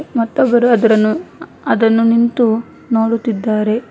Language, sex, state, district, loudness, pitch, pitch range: Kannada, female, Karnataka, Bangalore, -14 LUFS, 230 Hz, 225-235 Hz